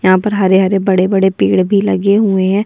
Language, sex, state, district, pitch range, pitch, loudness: Hindi, female, Bihar, Kishanganj, 190-200 Hz, 190 Hz, -12 LUFS